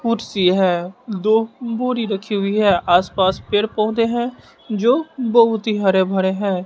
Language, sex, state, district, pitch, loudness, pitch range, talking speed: Hindi, male, Bihar, West Champaran, 210 Hz, -18 LUFS, 190-230 Hz, 155 wpm